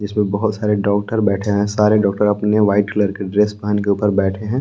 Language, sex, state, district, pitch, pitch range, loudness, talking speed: Hindi, male, Jharkhand, Palamu, 105 Hz, 100-105 Hz, -17 LUFS, 235 wpm